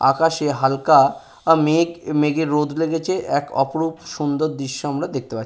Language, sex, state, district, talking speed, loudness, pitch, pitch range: Bengali, male, West Bengal, Purulia, 145 wpm, -20 LUFS, 150 Hz, 140-160 Hz